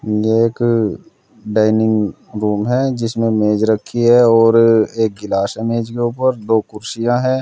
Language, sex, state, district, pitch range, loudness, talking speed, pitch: Hindi, male, Uttar Pradesh, Saharanpur, 110-120 Hz, -15 LUFS, 145 wpm, 115 Hz